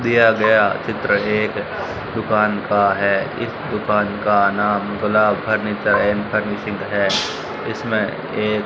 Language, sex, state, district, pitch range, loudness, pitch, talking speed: Hindi, male, Rajasthan, Bikaner, 100-105 Hz, -19 LUFS, 105 Hz, 125 wpm